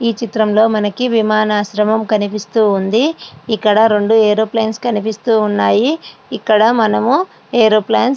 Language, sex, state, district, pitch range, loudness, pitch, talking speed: Telugu, female, Andhra Pradesh, Srikakulam, 210-230 Hz, -14 LUFS, 220 Hz, 110 wpm